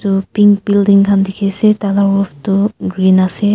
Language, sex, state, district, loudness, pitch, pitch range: Nagamese, female, Nagaland, Kohima, -12 LUFS, 200 Hz, 195-205 Hz